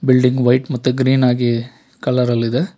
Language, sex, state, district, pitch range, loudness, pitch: Kannada, male, Karnataka, Bangalore, 125-130 Hz, -16 LUFS, 125 Hz